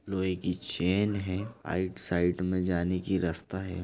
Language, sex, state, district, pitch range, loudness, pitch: Hindi, female, Chhattisgarh, Bastar, 90-95 Hz, -28 LUFS, 90 Hz